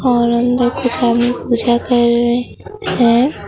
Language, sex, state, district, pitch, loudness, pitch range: Hindi, female, Bihar, Katihar, 240 Hz, -14 LUFS, 235-245 Hz